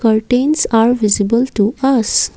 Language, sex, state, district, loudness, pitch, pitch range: English, female, Assam, Kamrup Metropolitan, -14 LUFS, 230 Hz, 220-250 Hz